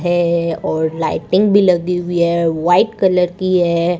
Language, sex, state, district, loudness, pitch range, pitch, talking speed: Hindi, female, Rajasthan, Bikaner, -15 LUFS, 170-180 Hz, 175 Hz, 165 wpm